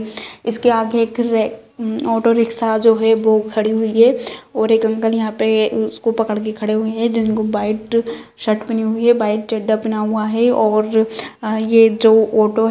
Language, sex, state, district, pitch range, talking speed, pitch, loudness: Kumaoni, female, Uttarakhand, Uttarkashi, 220-230 Hz, 185 wpm, 225 Hz, -16 LUFS